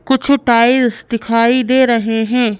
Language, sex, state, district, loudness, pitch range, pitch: Hindi, female, Madhya Pradesh, Bhopal, -13 LUFS, 230-255 Hz, 235 Hz